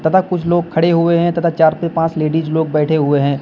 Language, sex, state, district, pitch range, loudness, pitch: Hindi, male, Uttar Pradesh, Lalitpur, 155-170 Hz, -15 LUFS, 165 Hz